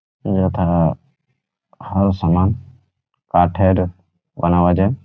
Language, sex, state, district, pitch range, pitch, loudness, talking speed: Bengali, male, West Bengal, Jhargram, 85-100 Hz, 90 Hz, -18 LUFS, 70 wpm